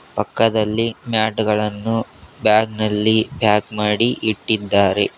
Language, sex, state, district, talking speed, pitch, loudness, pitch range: Kannada, male, Karnataka, Koppal, 95 wpm, 110 Hz, -18 LUFS, 105-110 Hz